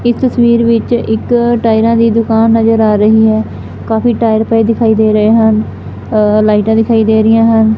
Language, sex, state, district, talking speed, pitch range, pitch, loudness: Punjabi, female, Punjab, Fazilka, 185 wpm, 220-230 Hz, 225 Hz, -10 LUFS